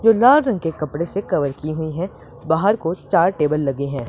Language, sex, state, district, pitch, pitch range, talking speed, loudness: Hindi, female, Punjab, Pathankot, 160 Hz, 150-195 Hz, 235 wpm, -19 LUFS